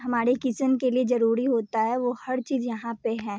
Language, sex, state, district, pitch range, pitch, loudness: Hindi, female, Bihar, Vaishali, 230-255 Hz, 245 Hz, -25 LUFS